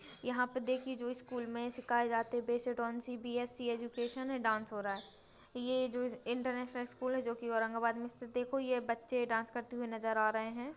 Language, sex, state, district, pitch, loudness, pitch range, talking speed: Hindi, female, Maharashtra, Aurangabad, 240 Hz, -38 LUFS, 230-250 Hz, 210 wpm